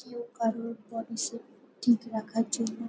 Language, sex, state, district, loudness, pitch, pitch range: Bengali, female, West Bengal, North 24 Parganas, -31 LUFS, 230 Hz, 225-235 Hz